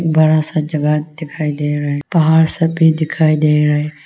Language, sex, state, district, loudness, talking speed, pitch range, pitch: Hindi, female, Arunachal Pradesh, Longding, -15 LUFS, 205 wpm, 150-160 Hz, 155 Hz